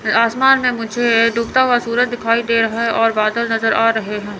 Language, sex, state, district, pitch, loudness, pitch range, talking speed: Hindi, female, Chandigarh, Chandigarh, 230 Hz, -16 LUFS, 225-240 Hz, 220 wpm